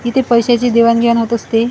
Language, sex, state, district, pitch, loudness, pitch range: Marathi, female, Maharashtra, Washim, 235 Hz, -13 LUFS, 230-240 Hz